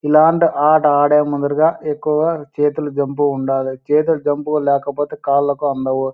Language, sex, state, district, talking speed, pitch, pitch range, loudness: Telugu, male, Andhra Pradesh, Anantapur, 125 wpm, 145 Hz, 140-150 Hz, -16 LUFS